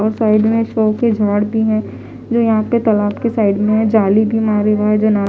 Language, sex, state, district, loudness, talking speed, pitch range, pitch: Hindi, female, Odisha, Khordha, -15 LUFS, 260 wpm, 210-225 Hz, 215 Hz